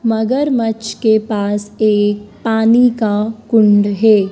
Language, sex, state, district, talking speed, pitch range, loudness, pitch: Hindi, female, Madhya Pradesh, Dhar, 110 wpm, 205-225 Hz, -14 LUFS, 220 Hz